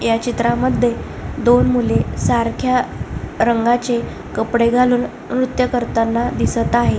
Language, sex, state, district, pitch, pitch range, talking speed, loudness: Marathi, female, Maharashtra, Solapur, 240 Hz, 235-250 Hz, 105 wpm, -17 LUFS